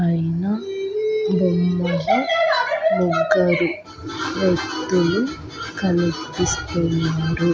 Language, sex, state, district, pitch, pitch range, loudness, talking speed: Telugu, female, Andhra Pradesh, Annamaya, 180 Hz, 170-250 Hz, -20 LUFS, 40 wpm